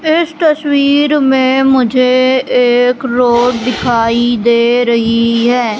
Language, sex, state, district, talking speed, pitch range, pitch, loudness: Hindi, female, Madhya Pradesh, Katni, 105 wpm, 235-265 Hz, 250 Hz, -11 LUFS